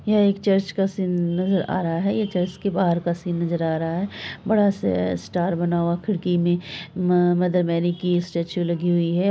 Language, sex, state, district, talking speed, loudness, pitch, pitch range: Hindi, female, Bihar, Araria, 205 wpm, -22 LUFS, 175 Hz, 170-190 Hz